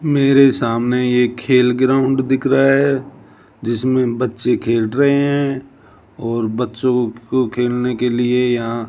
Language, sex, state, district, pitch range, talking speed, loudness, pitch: Hindi, male, Rajasthan, Jaipur, 120-135 Hz, 135 wpm, -16 LUFS, 125 Hz